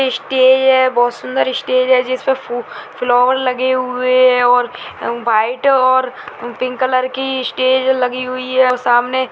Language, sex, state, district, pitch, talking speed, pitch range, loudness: Hindi, female, Chhattisgarh, Kabirdham, 255 Hz, 160 wpm, 245-260 Hz, -15 LUFS